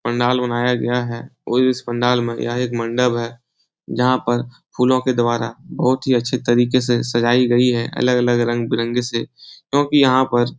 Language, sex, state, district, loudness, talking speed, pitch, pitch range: Hindi, male, Bihar, Supaul, -18 LUFS, 180 wpm, 120 Hz, 120-125 Hz